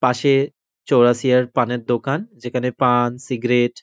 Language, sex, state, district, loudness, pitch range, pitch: Bengali, male, West Bengal, North 24 Parganas, -19 LUFS, 120-135 Hz, 125 Hz